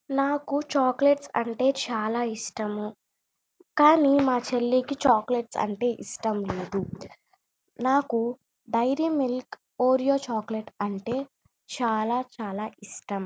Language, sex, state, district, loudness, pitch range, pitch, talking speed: Telugu, female, Andhra Pradesh, Chittoor, -26 LUFS, 220-275 Hz, 245 Hz, 90 wpm